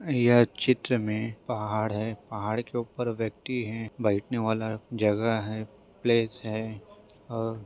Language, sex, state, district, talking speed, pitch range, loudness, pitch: Hindi, female, Maharashtra, Dhule, 135 wpm, 105-120 Hz, -28 LUFS, 110 Hz